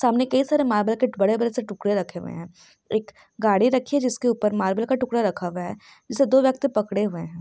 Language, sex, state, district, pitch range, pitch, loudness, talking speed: Hindi, female, Maharashtra, Pune, 200-255 Hz, 225 Hz, -23 LUFS, 225 wpm